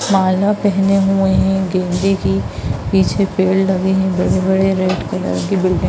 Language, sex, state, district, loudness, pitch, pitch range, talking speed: Hindi, female, Bihar, Darbhanga, -16 LUFS, 190 Hz, 170-195 Hz, 165 wpm